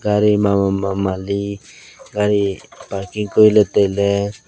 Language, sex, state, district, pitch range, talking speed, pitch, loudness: Wancho, male, Arunachal Pradesh, Longding, 100-105 Hz, 95 wpm, 100 Hz, -17 LUFS